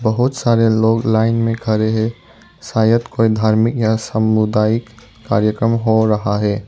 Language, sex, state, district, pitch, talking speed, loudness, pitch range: Hindi, male, Arunachal Pradesh, Lower Dibang Valley, 110 Hz, 145 wpm, -16 LUFS, 110-115 Hz